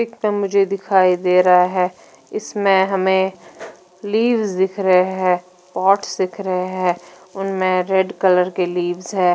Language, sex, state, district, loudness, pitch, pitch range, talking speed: Hindi, female, Punjab, Fazilka, -18 LUFS, 190 Hz, 180-195 Hz, 130 wpm